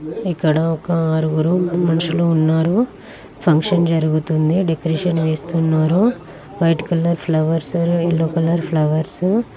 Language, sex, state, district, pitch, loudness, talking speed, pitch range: Telugu, female, Telangana, Karimnagar, 165 Hz, -18 LUFS, 100 wpm, 160-170 Hz